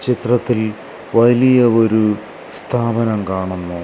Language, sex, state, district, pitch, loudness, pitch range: Malayalam, male, Kerala, Kasaragod, 115 Hz, -16 LUFS, 105-120 Hz